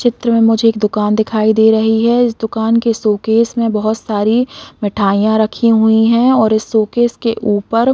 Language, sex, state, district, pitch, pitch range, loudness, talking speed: Hindi, female, Bihar, East Champaran, 225 Hz, 215-230 Hz, -13 LUFS, 195 wpm